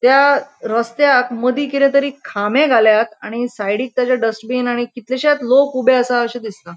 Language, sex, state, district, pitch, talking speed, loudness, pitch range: Konkani, female, Goa, North and South Goa, 250 Hz, 150 wpm, -16 LUFS, 230-270 Hz